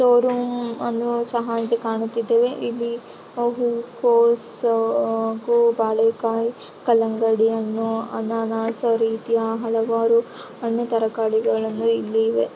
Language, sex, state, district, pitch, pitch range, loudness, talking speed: Kannada, female, Karnataka, Raichur, 230 Hz, 225-235 Hz, -21 LUFS, 85 wpm